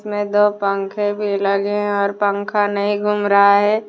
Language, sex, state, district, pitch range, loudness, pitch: Hindi, female, Jharkhand, Deoghar, 200-205 Hz, -17 LUFS, 205 Hz